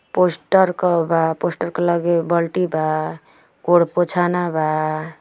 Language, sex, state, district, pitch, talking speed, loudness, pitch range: Bhojpuri, female, Uttar Pradesh, Ghazipur, 170 Hz, 125 wpm, -19 LUFS, 160-175 Hz